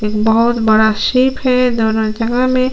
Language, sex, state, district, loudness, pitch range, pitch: Hindi, female, Chhattisgarh, Sukma, -14 LUFS, 220-255 Hz, 230 Hz